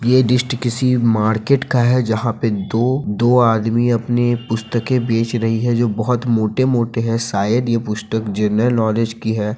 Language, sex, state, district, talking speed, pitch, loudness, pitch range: Hindi, male, Bihar, Sitamarhi, 170 wpm, 115 Hz, -17 LUFS, 110-120 Hz